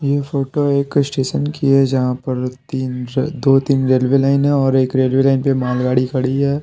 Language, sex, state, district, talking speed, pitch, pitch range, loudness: Hindi, male, Bihar, Patna, 190 wpm, 135 Hz, 130-140 Hz, -16 LUFS